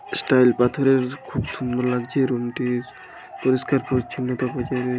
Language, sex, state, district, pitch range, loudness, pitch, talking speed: Bengali, male, West Bengal, Paschim Medinipur, 125-130 Hz, -22 LUFS, 125 Hz, 145 wpm